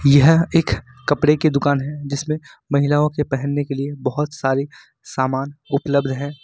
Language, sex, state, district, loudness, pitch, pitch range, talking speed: Hindi, male, Jharkhand, Ranchi, -19 LUFS, 145 Hz, 140-150 Hz, 160 wpm